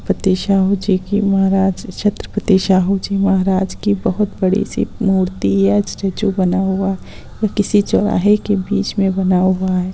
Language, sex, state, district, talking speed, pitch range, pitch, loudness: Hindi, female, Bihar, Gaya, 175 wpm, 185-200 Hz, 195 Hz, -16 LUFS